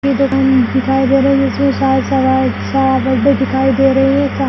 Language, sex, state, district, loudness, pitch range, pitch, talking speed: Hindi, female, Bihar, Madhepura, -13 LUFS, 265-275 Hz, 270 Hz, 95 wpm